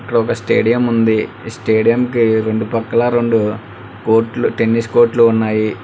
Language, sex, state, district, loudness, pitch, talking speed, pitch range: Telugu, male, Telangana, Hyderabad, -15 LUFS, 115 Hz, 135 wpm, 110-120 Hz